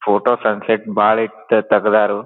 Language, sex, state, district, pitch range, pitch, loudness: Kannada, male, Karnataka, Dharwad, 105-110 Hz, 110 Hz, -16 LUFS